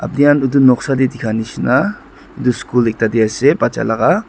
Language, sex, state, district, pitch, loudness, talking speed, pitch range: Nagamese, male, Nagaland, Dimapur, 125 Hz, -15 LUFS, 195 wpm, 115-135 Hz